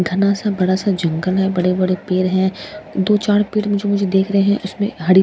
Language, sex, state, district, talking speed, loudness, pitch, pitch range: Hindi, female, Bihar, Katihar, 220 wpm, -17 LUFS, 190 Hz, 185-205 Hz